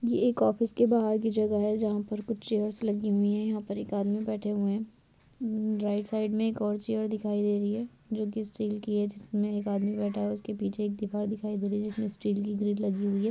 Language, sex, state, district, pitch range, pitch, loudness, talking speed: Hindi, female, Bihar, Madhepura, 205-215 Hz, 210 Hz, -30 LUFS, 255 wpm